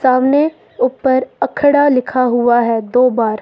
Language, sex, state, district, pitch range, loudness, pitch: Hindi, female, Jharkhand, Ranchi, 240-270 Hz, -14 LUFS, 255 Hz